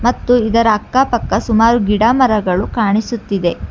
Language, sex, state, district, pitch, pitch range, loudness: Kannada, female, Karnataka, Bangalore, 225 Hz, 205-240 Hz, -14 LUFS